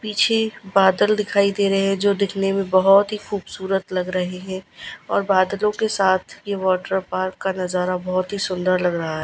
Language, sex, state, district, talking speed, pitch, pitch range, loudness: Hindi, female, Gujarat, Gandhinagar, 195 wpm, 195 Hz, 185-200 Hz, -20 LUFS